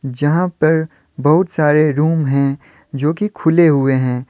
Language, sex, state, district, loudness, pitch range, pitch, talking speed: Hindi, male, Jharkhand, Deoghar, -15 LUFS, 140-160 Hz, 150 Hz, 155 wpm